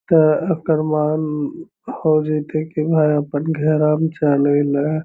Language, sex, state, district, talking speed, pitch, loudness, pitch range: Magahi, male, Bihar, Lakhisarai, 140 wpm, 155 Hz, -18 LUFS, 150-160 Hz